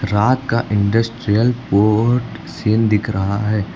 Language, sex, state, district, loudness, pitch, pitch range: Hindi, male, Uttar Pradesh, Lucknow, -17 LUFS, 105 Hz, 105-115 Hz